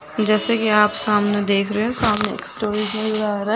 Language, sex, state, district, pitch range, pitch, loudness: Hindi, female, Chandigarh, Chandigarh, 210-215 Hz, 210 Hz, -19 LUFS